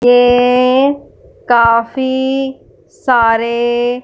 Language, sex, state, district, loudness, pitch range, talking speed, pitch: Hindi, female, Punjab, Fazilka, -12 LUFS, 240-265 Hz, 45 wpm, 245 Hz